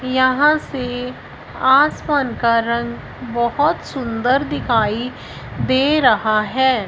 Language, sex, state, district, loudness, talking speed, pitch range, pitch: Hindi, female, Punjab, Fazilka, -18 LUFS, 95 wpm, 235-270 Hz, 250 Hz